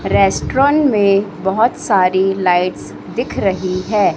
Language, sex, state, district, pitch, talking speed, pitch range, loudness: Hindi, female, Madhya Pradesh, Katni, 195 Hz, 115 wpm, 185-220 Hz, -15 LUFS